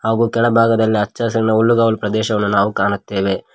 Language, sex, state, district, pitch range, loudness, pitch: Kannada, male, Karnataka, Koppal, 105-115 Hz, -16 LUFS, 110 Hz